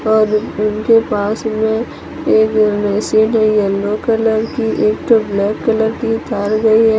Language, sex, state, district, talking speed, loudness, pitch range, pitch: Hindi, female, Odisha, Sambalpur, 135 wpm, -15 LUFS, 210-225 Hz, 220 Hz